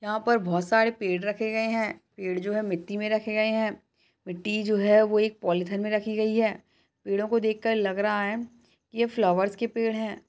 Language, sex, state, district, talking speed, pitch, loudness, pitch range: Hindi, female, Uttar Pradesh, Budaun, 215 wpm, 215 Hz, -26 LUFS, 205-225 Hz